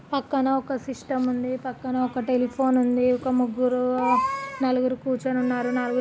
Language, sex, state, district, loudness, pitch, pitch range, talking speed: Telugu, female, Andhra Pradesh, Guntur, -24 LUFS, 255 Hz, 250-265 Hz, 130 wpm